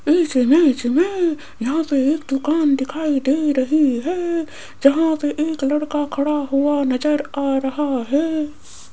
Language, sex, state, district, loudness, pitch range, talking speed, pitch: Hindi, female, Rajasthan, Jaipur, -19 LUFS, 275-315 Hz, 140 wpm, 295 Hz